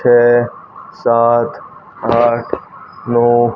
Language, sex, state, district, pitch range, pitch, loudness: Hindi, male, Haryana, Rohtak, 115-120 Hz, 120 Hz, -14 LUFS